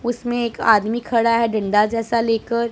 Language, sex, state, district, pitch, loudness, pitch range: Hindi, female, Punjab, Pathankot, 230 Hz, -19 LUFS, 225-235 Hz